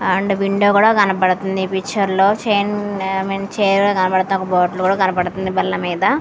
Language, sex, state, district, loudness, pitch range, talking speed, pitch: Telugu, female, Andhra Pradesh, Srikakulam, -17 LUFS, 185-200 Hz, 60 wpm, 195 Hz